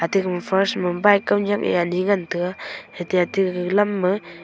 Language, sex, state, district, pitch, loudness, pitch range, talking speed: Wancho, female, Arunachal Pradesh, Longding, 185 Hz, -21 LUFS, 175-200 Hz, 205 wpm